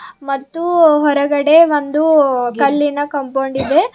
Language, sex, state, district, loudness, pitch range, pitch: Kannada, female, Karnataka, Bidar, -14 LUFS, 275-320 Hz, 290 Hz